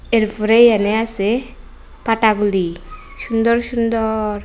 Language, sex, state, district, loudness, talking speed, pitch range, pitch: Bengali, female, Tripura, West Tripura, -16 LUFS, 80 wpm, 210-230 Hz, 225 Hz